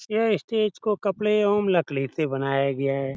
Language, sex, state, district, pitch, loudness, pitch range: Hindi, male, Uttar Pradesh, Etah, 190 Hz, -24 LUFS, 135-210 Hz